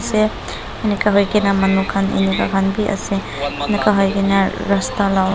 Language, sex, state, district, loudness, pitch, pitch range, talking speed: Nagamese, female, Nagaland, Dimapur, -17 LUFS, 195 Hz, 195-205 Hz, 135 wpm